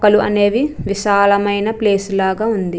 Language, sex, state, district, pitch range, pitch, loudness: Telugu, female, Andhra Pradesh, Chittoor, 200-210 Hz, 205 Hz, -15 LUFS